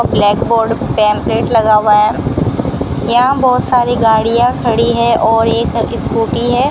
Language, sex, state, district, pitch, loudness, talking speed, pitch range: Hindi, female, Rajasthan, Bikaner, 230 Hz, -12 LUFS, 135 wpm, 220-245 Hz